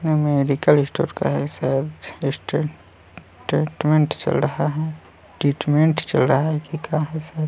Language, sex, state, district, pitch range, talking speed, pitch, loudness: Chhattisgarhi, male, Chhattisgarh, Balrampur, 140-155 Hz, 130 wpm, 150 Hz, -21 LUFS